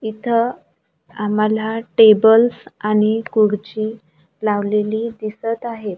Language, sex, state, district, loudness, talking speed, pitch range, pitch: Marathi, female, Maharashtra, Gondia, -17 LUFS, 80 wpm, 210-225 Hz, 215 Hz